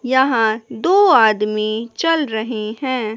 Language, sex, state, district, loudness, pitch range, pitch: Hindi, female, Bihar, West Champaran, -17 LUFS, 215-265 Hz, 225 Hz